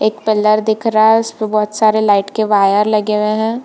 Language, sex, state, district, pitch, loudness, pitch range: Hindi, female, Bihar, Purnia, 215 Hz, -14 LUFS, 210-220 Hz